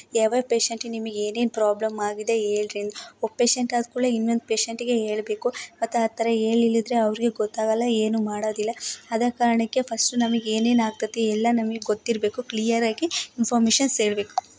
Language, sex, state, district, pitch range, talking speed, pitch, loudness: Kannada, female, Karnataka, Dakshina Kannada, 220-235 Hz, 150 wpm, 230 Hz, -24 LUFS